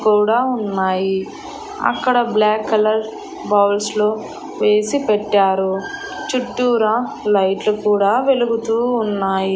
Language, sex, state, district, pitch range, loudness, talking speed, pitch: Telugu, female, Andhra Pradesh, Annamaya, 200-240 Hz, -17 LUFS, 90 wpm, 215 Hz